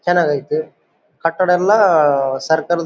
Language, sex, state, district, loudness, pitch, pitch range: Kannada, male, Karnataka, Bellary, -16 LUFS, 175 Hz, 160-185 Hz